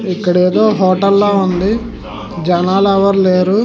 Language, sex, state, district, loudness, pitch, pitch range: Telugu, male, Andhra Pradesh, Srikakulam, -12 LUFS, 195 Hz, 185-200 Hz